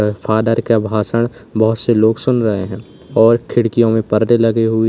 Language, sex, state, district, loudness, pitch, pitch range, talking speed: Hindi, male, Uttar Pradesh, Lalitpur, -15 LUFS, 115 Hz, 110-115 Hz, 185 wpm